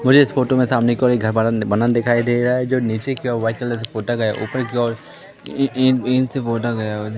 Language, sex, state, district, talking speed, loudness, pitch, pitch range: Hindi, male, Madhya Pradesh, Katni, 285 wpm, -19 LUFS, 120 Hz, 115-130 Hz